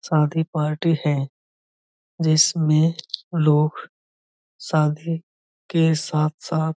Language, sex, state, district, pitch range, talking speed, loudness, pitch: Hindi, male, Uttar Pradesh, Budaun, 155-165 Hz, 90 wpm, -21 LUFS, 155 Hz